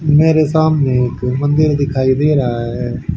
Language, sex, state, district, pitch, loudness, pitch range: Hindi, male, Haryana, Charkhi Dadri, 140 Hz, -14 LUFS, 125-150 Hz